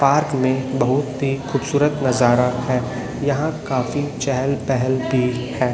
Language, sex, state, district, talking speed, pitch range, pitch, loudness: Hindi, male, Chhattisgarh, Raipur, 135 wpm, 125-140 Hz, 130 Hz, -20 LUFS